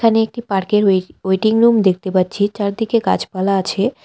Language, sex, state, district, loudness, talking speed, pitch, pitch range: Bengali, female, West Bengal, Cooch Behar, -16 LUFS, 165 wpm, 205 Hz, 190-225 Hz